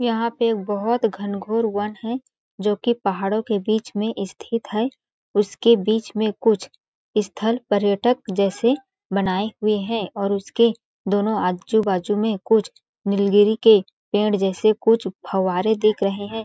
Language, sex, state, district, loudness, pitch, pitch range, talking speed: Hindi, female, Chhattisgarh, Balrampur, -21 LUFS, 215 Hz, 200-225 Hz, 140 wpm